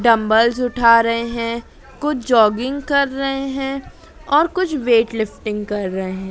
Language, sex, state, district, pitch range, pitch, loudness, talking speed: Hindi, female, Madhya Pradesh, Dhar, 220-275 Hz, 235 Hz, -18 LUFS, 150 wpm